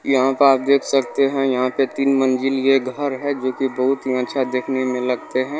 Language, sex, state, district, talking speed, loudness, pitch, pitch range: Bhojpuri, male, Bihar, Saran, 245 wpm, -19 LUFS, 135 Hz, 130-135 Hz